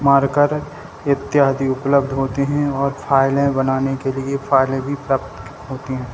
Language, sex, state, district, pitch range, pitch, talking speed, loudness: Hindi, male, Bihar, Samastipur, 135-140 Hz, 135 Hz, 145 wpm, -18 LUFS